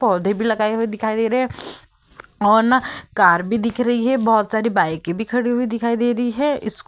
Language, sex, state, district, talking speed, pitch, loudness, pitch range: Hindi, female, Uttar Pradesh, Hamirpur, 235 wpm, 230 Hz, -19 LUFS, 215-240 Hz